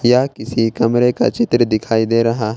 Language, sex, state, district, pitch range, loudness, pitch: Hindi, male, Jharkhand, Ranchi, 110-120 Hz, -16 LUFS, 115 Hz